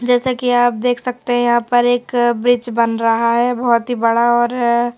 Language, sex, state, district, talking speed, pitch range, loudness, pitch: Hindi, female, Madhya Pradesh, Bhopal, 205 wpm, 235-245 Hz, -15 LUFS, 240 Hz